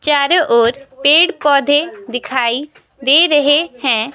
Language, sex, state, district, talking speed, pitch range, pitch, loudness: Hindi, female, Himachal Pradesh, Shimla, 115 wpm, 250-295 Hz, 280 Hz, -13 LUFS